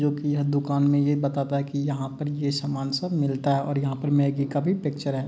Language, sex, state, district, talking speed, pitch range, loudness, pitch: Hindi, male, Uttar Pradesh, Etah, 260 wpm, 140-145 Hz, -25 LUFS, 140 Hz